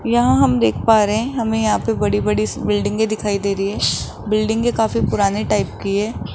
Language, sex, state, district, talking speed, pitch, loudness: Hindi, male, Rajasthan, Jaipur, 210 wpm, 205 Hz, -18 LUFS